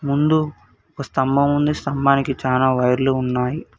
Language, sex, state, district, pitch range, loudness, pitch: Telugu, male, Telangana, Hyderabad, 130-145 Hz, -19 LUFS, 135 Hz